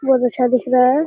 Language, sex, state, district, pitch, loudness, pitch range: Hindi, male, Bihar, Jamui, 255 Hz, -16 LUFS, 250-265 Hz